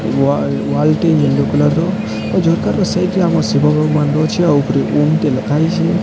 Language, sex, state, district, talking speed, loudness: Odia, male, Odisha, Sambalpur, 190 wpm, -14 LUFS